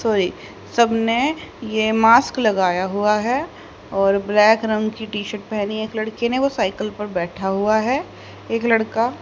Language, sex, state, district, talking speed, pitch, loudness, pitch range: Hindi, female, Haryana, Rohtak, 175 wpm, 220 Hz, -19 LUFS, 210-230 Hz